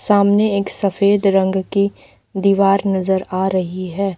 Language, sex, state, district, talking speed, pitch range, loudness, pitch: Hindi, female, Uttar Pradesh, Lalitpur, 145 wpm, 190-200 Hz, -17 LUFS, 195 Hz